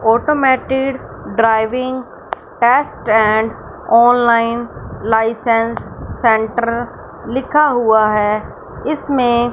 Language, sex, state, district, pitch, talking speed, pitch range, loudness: Hindi, female, Punjab, Fazilka, 235 Hz, 70 wpm, 225-255 Hz, -15 LUFS